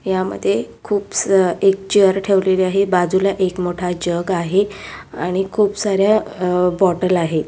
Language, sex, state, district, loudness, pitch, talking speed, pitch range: Marathi, female, Maharashtra, Sindhudurg, -17 LUFS, 190 Hz, 145 wpm, 180-195 Hz